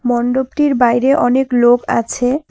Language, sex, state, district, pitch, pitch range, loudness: Bengali, female, West Bengal, Alipurduar, 250 Hz, 240-265 Hz, -14 LUFS